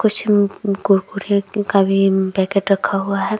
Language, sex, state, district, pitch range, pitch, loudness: Hindi, female, Uttar Pradesh, Jyotiba Phule Nagar, 195-205 Hz, 200 Hz, -17 LUFS